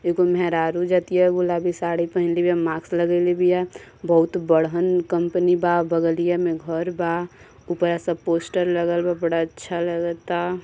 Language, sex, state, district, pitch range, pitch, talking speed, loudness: Bhojpuri, female, Uttar Pradesh, Gorakhpur, 170-180 Hz, 175 Hz, 150 wpm, -21 LUFS